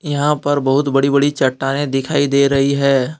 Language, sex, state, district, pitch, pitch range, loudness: Hindi, male, Jharkhand, Deoghar, 140 Hz, 135-145 Hz, -16 LUFS